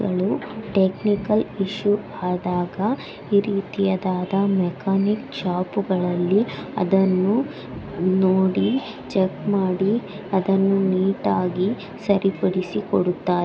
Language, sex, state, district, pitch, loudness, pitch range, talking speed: Kannada, female, Karnataka, Raichur, 195 Hz, -22 LUFS, 185-205 Hz, 70 wpm